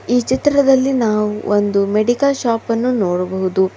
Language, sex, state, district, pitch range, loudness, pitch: Kannada, female, Karnataka, Bidar, 205-260 Hz, -16 LUFS, 230 Hz